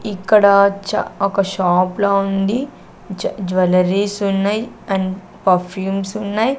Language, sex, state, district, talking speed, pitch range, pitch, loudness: Telugu, female, Andhra Pradesh, Sri Satya Sai, 110 wpm, 190-205 Hz, 195 Hz, -17 LUFS